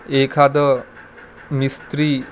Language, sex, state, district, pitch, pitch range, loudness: Marathi, male, Maharashtra, Gondia, 140 Hz, 135-145 Hz, -18 LUFS